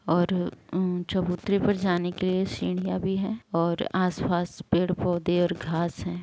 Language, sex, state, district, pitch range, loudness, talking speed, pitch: Hindi, female, Jharkhand, Sahebganj, 170-185 Hz, -27 LUFS, 155 wpm, 180 Hz